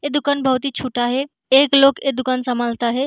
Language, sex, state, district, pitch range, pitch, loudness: Hindi, female, Bihar, Gaya, 250-275 Hz, 265 Hz, -18 LUFS